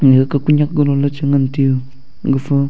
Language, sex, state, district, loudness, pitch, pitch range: Wancho, male, Arunachal Pradesh, Longding, -15 LUFS, 140 Hz, 135-145 Hz